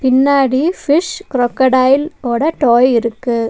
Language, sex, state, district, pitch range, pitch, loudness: Tamil, female, Tamil Nadu, Nilgiris, 245-290 Hz, 260 Hz, -13 LUFS